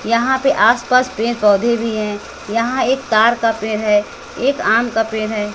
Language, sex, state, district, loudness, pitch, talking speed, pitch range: Hindi, female, Bihar, West Champaran, -16 LUFS, 230 Hz, 205 wpm, 215-245 Hz